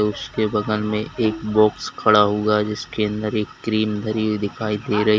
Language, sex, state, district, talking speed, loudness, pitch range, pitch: Hindi, male, Uttar Pradesh, Lalitpur, 185 wpm, -21 LUFS, 105-110 Hz, 105 Hz